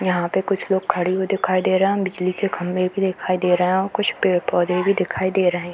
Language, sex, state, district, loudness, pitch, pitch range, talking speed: Hindi, female, Bihar, Darbhanga, -20 LUFS, 185 Hz, 180-190 Hz, 270 wpm